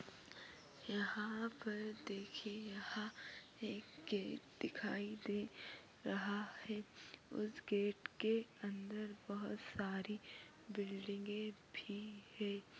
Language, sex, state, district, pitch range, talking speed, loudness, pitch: Hindi, female, Maharashtra, Dhule, 205-215 Hz, 90 wpm, -46 LUFS, 210 Hz